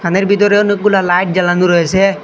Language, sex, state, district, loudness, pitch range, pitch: Bengali, male, Assam, Hailakandi, -12 LUFS, 180-200 Hz, 190 Hz